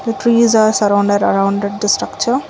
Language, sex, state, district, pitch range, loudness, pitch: English, female, Karnataka, Bangalore, 200-235 Hz, -14 LUFS, 210 Hz